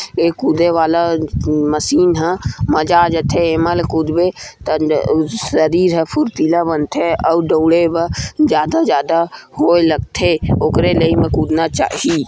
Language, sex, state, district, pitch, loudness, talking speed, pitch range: Chhattisgarhi, male, Chhattisgarh, Kabirdham, 165 Hz, -15 LUFS, 155 wpm, 155-170 Hz